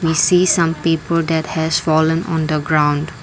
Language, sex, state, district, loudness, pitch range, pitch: English, female, Assam, Kamrup Metropolitan, -16 LUFS, 155-165 Hz, 160 Hz